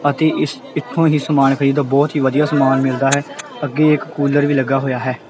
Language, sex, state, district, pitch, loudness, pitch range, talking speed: Punjabi, male, Punjab, Kapurthala, 140 Hz, -16 LUFS, 135-150 Hz, 205 wpm